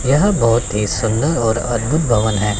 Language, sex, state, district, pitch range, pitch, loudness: Hindi, male, Chandigarh, Chandigarh, 110-140 Hz, 115 Hz, -16 LUFS